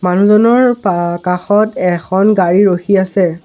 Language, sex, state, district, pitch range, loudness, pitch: Assamese, male, Assam, Sonitpur, 180-205 Hz, -12 LUFS, 190 Hz